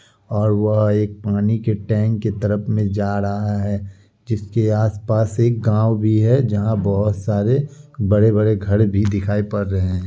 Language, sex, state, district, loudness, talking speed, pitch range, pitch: Hindi, male, Bihar, Kishanganj, -19 LUFS, 165 wpm, 100-110 Hz, 105 Hz